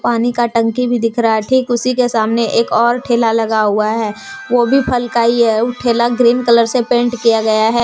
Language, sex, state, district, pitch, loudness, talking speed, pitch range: Hindi, female, Jharkhand, Deoghar, 235 Hz, -14 LUFS, 245 wpm, 225-245 Hz